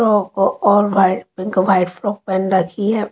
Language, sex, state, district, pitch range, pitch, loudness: Hindi, female, Haryana, Rohtak, 190-205 Hz, 195 Hz, -17 LUFS